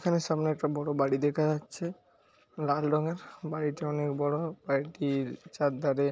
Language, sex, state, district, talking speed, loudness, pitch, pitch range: Bengali, male, West Bengal, Paschim Medinipur, 145 wpm, -31 LUFS, 150 Hz, 145-160 Hz